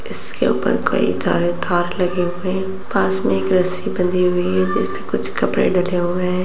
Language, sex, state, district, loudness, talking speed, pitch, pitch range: Hindi, female, Bihar, Lakhisarai, -18 LUFS, 195 wpm, 180 Hz, 175-185 Hz